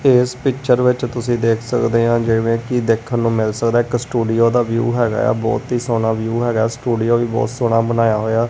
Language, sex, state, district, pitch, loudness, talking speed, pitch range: Punjabi, male, Punjab, Kapurthala, 115 Hz, -17 LUFS, 210 wpm, 115-120 Hz